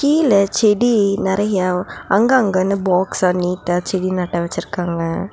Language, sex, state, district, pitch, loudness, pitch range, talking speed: Tamil, female, Tamil Nadu, Nilgiris, 190 Hz, -17 LUFS, 180-205 Hz, 100 wpm